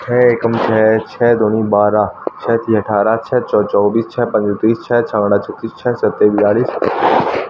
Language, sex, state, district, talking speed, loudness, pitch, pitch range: Hindi, male, Haryana, Rohtak, 175 wpm, -14 LUFS, 110 Hz, 105-115 Hz